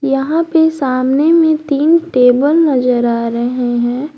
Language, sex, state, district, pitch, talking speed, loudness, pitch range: Hindi, female, Jharkhand, Garhwa, 275 Hz, 145 wpm, -13 LUFS, 250-315 Hz